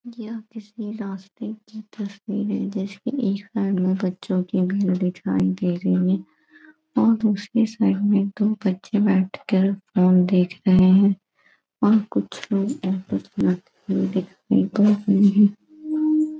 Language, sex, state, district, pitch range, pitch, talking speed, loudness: Hindi, female, Bihar, Gaya, 190-220 Hz, 200 Hz, 100 wpm, -21 LUFS